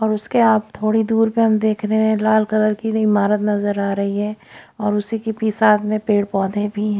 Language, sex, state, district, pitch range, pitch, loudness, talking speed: Hindi, female, Bihar, Katihar, 210-220 Hz, 215 Hz, -18 LUFS, 240 wpm